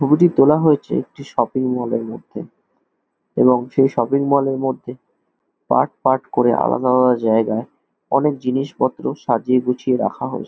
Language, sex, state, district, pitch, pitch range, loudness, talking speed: Bengali, male, West Bengal, Jhargram, 130 Hz, 125-140 Hz, -18 LUFS, 150 wpm